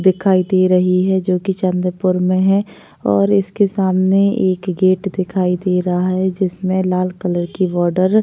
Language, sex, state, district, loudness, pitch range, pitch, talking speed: Hindi, female, Maharashtra, Chandrapur, -16 LUFS, 180-190 Hz, 185 Hz, 175 wpm